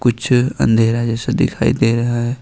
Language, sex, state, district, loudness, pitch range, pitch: Hindi, male, Jharkhand, Ranchi, -16 LUFS, 115-125 Hz, 120 Hz